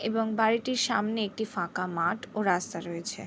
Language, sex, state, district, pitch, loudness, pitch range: Bengali, female, West Bengal, Jhargram, 210 Hz, -29 LUFS, 180-225 Hz